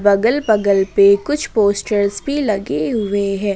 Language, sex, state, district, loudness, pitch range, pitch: Hindi, female, Jharkhand, Ranchi, -16 LUFS, 200-225 Hz, 205 Hz